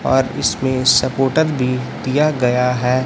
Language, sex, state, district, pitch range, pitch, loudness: Hindi, male, Chhattisgarh, Raipur, 125-135 Hz, 130 Hz, -17 LUFS